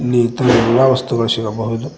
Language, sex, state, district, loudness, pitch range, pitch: Kannada, male, Karnataka, Koppal, -15 LUFS, 115-130 Hz, 120 Hz